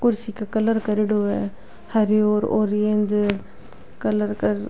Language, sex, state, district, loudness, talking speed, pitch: Rajasthani, female, Rajasthan, Nagaur, -22 LUFS, 140 wpm, 210 Hz